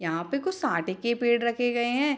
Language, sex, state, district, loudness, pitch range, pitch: Hindi, female, Bihar, Madhepura, -27 LUFS, 235-275 Hz, 240 Hz